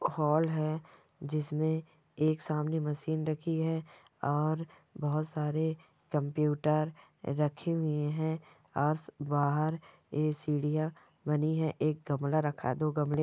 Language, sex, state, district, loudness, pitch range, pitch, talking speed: Hindi, female, Bihar, Jamui, -33 LUFS, 150-160 Hz, 155 Hz, 125 wpm